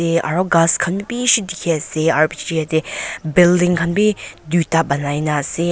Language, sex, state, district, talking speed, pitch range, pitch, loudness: Nagamese, female, Nagaland, Dimapur, 170 wpm, 155-175 Hz, 165 Hz, -17 LUFS